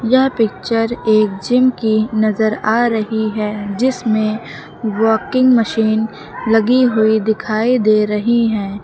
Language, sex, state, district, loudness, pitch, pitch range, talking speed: Hindi, female, Uttar Pradesh, Lucknow, -15 LUFS, 220 Hz, 215-235 Hz, 120 wpm